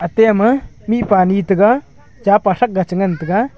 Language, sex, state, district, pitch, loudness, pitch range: Wancho, male, Arunachal Pradesh, Longding, 205 Hz, -15 LUFS, 190-225 Hz